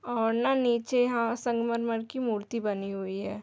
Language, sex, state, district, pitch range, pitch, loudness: Hindi, female, Uttar Pradesh, Hamirpur, 210-240 Hz, 230 Hz, -29 LUFS